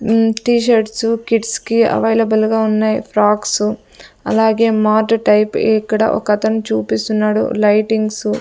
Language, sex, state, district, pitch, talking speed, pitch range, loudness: Telugu, female, Andhra Pradesh, Sri Satya Sai, 220 Hz, 115 wpm, 215-225 Hz, -15 LUFS